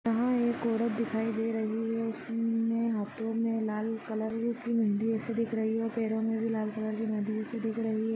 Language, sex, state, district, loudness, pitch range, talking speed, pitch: Hindi, female, Chhattisgarh, Balrampur, -31 LUFS, 220-230 Hz, 220 wpm, 225 Hz